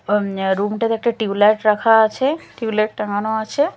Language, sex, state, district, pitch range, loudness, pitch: Bengali, female, Chhattisgarh, Raipur, 205-225 Hz, -18 LUFS, 215 Hz